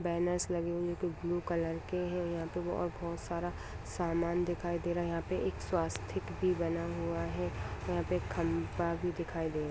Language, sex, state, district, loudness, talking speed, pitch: Hindi, female, Bihar, Madhepura, -36 LUFS, 215 wpm, 170 Hz